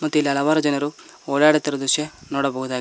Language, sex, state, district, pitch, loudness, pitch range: Kannada, male, Karnataka, Koppal, 145 Hz, -20 LUFS, 140-150 Hz